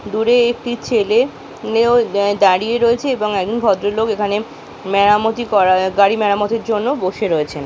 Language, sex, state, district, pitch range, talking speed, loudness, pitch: Bengali, female, West Bengal, North 24 Parganas, 200-235 Hz, 140 wpm, -16 LUFS, 215 Hz